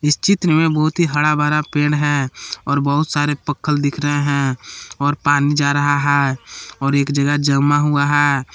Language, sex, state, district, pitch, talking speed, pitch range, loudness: Hindi, male, Jharkhand, Palamu, 145 Hz, 180 wpm, 140-150 Hz, -17 LUFS